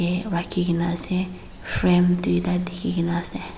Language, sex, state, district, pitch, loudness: Nagamese, female, Nagaland, Dimapur, 170 Hz, -21 LUFS